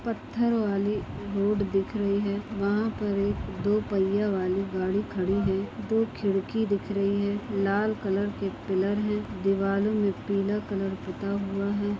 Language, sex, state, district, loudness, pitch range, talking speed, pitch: Hindi, female, Chhattisgarh, Bastar, -28 LUFS, 195-210 Hz, 160 wpm, 200 Hz